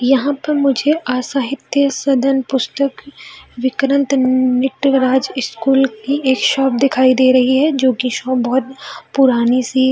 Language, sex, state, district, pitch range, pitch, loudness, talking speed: Hindi, female, Bihar, Jamui, 255-275 Hz, 265 Hz, -15 LUFS, 140 wpm